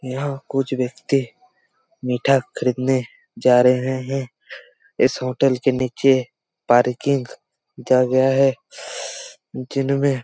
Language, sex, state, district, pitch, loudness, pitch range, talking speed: Hindi, male, Chhattisgarh, Raigarh, 130 Hz, -20 LUFS, 125-135 Hz, 95 wpm